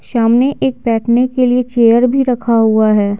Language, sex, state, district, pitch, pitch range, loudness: Hindi, female, Bihar, Patna, 240 Hz, 230-250 Hz, -12 LUFS